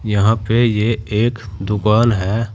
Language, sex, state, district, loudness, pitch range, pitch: Hindi, male, Uttar Pradesh, Saharanpur, -16 LUFS, 105-115 Hz, 110 Hz